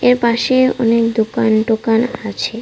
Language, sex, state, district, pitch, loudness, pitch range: Bengali, female, Tripura, West Tripura, 230 Hz, -15 LUFS, 225-245 Hz